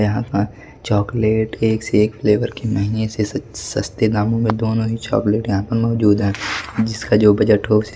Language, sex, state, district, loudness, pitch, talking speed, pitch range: Hindi, male, Delhi, New Delhi, -18 LUFS, 110 Hz, 190 wpm, 105-110 Hz